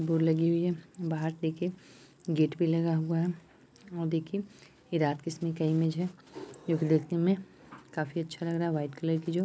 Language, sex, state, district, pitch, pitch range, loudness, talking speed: Hindi, female, Bihar, Purnia, 165 Hz, 160-175 Hz, -31 LUFS, 210 wpm